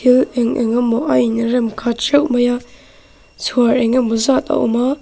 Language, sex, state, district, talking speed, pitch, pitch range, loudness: Mizo, female, Mizoram, Aizawl, 205 wpm, 245 Hz, 235-255 Hz, -16 LUFS